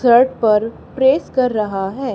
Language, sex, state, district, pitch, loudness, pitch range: Hindi, female, Haryana, Charkhi Dadri, 240 Hz, -16 LUFS, 215-265 Hz